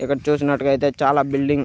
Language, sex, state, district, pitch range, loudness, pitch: Telugu, male, Andhra Pradesh, Krishna, 140-145 Hz, -19 LUFS, 140 Hz